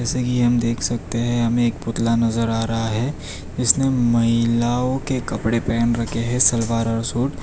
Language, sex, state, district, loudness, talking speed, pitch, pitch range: Hindi, male, Gujarat, Valsad, -20 LUFS, 185 wpm, 115 Hz, 115-120 Hz